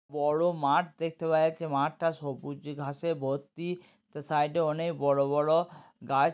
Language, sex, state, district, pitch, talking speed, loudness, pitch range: Bengali, male, West Bengal, Jhargram, 150 Hz, 150 wpm, -30 LUFS, 140-165 Hz